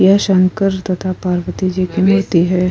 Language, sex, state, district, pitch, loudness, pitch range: Hindi, female, Uttar Pradesh, Hamirpur, 185 Hz, -15 LUFS, 180-190 Hz